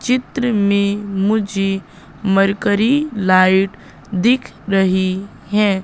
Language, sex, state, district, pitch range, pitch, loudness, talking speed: Hindi, female, Madhya Pradesh, Katni, 190-215 Hz, 200 Hz, -17 LUFS, 80 wpm